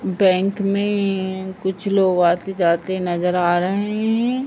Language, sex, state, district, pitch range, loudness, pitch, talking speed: Hindi, female, Uttar Pradesh, Ghazipur, 180-200 Hz, -19 LUFS, 190 Hz, 135 wpm